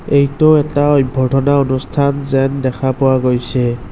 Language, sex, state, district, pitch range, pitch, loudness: Assamese, male, Assam, Kamrup Metropolitan, 130-140 Hz, 135 Hz, -14 LUFS